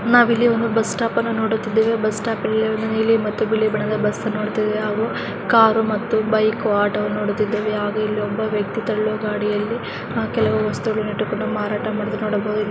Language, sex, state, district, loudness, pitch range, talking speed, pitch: Kannada, female, Karnataka, Mysore, -20 LUFS, 210-220 Hz, 150 wpm, 215 Hz